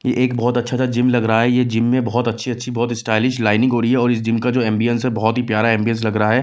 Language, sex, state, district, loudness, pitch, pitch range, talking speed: Hindi, male, Bihar, West Champaran, -18 LUFS, 120 Hz, 115-125 Hz, 315 wpm